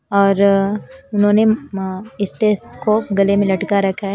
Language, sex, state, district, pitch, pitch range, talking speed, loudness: Hindi, female, Himachal Pradesh, Shimla, 200 Hz, 195-215 Hz, 130 wpm, -17 LUFS